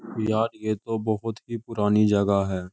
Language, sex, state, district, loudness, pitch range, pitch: Hindi, male, Uttar Pradesh, Jyotiba Phule Nagar, -25 LUFS, 105-115 Hz, 110 Hz